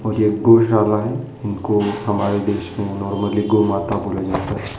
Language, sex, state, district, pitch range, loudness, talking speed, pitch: Hindi, male, Madhya Pradesh, Dhar, 100-110 Hz, -19 LUFS, 175 wpm, 105 Hz